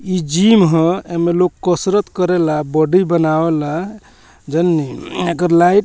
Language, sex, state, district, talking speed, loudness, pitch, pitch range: Bhojpuri, male, Bihar, Muzaffarpur, 135 wpm, -15 LUFS, 175 Hz, 160-185 Hz